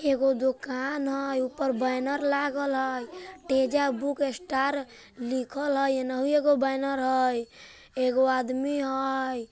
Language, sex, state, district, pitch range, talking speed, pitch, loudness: Bajjika, male, Bihar, Vaishali, 260-280 Hz, 120 wpm, 270 Hz, -27 LUFS